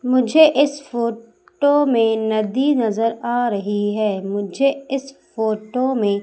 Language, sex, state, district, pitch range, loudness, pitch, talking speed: Hindi, female, Madhya Pradesh, Umaria, 215-275 Hz, -19 LUFS, 235 Hz, 125 wpm